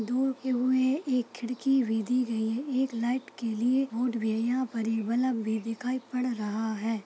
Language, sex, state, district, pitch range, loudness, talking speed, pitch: Hindi, female, Chhattisgarh, Balrampur, 225-255 Hz, -29 LUFS, 205 wpm, 245 Hz